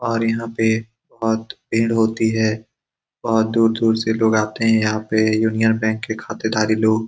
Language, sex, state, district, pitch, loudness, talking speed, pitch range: Hindi, male, Bihar, Saran, 110 Hz, -19 LUFS, 185 wpm, 110-115 Hz